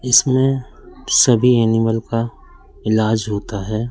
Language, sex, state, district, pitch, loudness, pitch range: Hindi, male, Madhya Pradesh, Katni, 115 Hz, -17 LUFS, 110-125 Hz